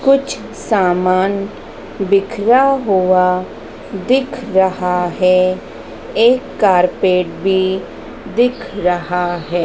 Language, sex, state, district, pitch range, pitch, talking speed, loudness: Hindi, female, Madhya Pradesh, Dhar, 180-220 Hz, 190 Hz, 80 wpm, -15 LUFS